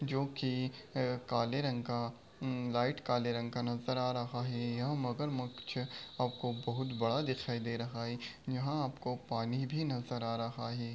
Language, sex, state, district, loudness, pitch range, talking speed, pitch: Hindi, male, Uttar Pradesh, Budaun, -37 LUFS, 120-130 Hz, 175 wpm, 125 Hz